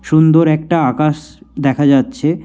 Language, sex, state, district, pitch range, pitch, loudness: Bengali, male, West Bengal, Alipurduar, 140-160 Hz, 155 Hz, -13 LUFS